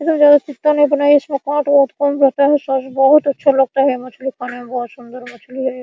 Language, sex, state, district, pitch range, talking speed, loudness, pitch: Hindi, female, Bihar, Araria, 255-290 Hz, 235 wpm, -15 LUFS, 275 Hz